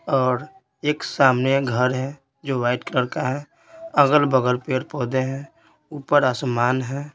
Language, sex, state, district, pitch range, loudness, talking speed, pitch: Hindi, male, Bihar, Patna, 130-145 Hz, -21 LUFS, 135 wpm, 135 Hz